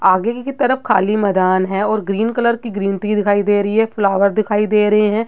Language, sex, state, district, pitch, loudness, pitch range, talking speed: Hindi, female, Uttar Pradesh, Gorakhpur, 210 Hz, -16 LUFS, 200-225 Hz, 240 wpm